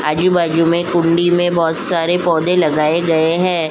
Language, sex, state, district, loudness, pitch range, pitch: Hindi, female, Uttar Pradesh, Jyotiba Phule Nagar, -15 LUFS, 165-175 Hz, 170 Hz